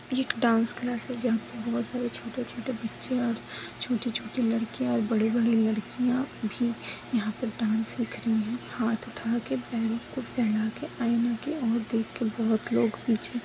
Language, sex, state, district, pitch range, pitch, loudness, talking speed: Hindi, female, Chhattisgarh, Balrampur, 225-240 Hz, 230 Hz, -29 LUFS, 185 wpm